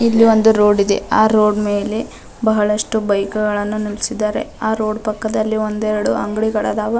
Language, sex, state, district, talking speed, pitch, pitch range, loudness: Kannada, female, Karnataka, Dharwad, 165 wpm, 215 Hz, 210-220 Hz, -17 LUFS